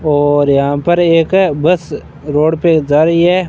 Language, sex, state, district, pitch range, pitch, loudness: Hindi, male, Rajasthan, Bikaner, 145-170 Hz, 160 Hz, -12 LUFS